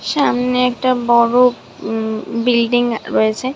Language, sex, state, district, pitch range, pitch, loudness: Bengali, female, West Bengal, Dakshin Dinajpur, 225-250 Hz, 240 Hz, -16 LUFS